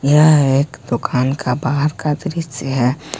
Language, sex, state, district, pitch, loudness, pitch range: Hindi, male, Jharkhand, Ranchi, 140 Hz, -17 LUFS, 130-155 Hz